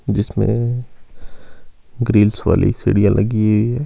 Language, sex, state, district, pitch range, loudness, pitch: Hindi, male, Himachal Pradesh, Shimla, 105-120 Hz, -16 LUFS, 115 Hz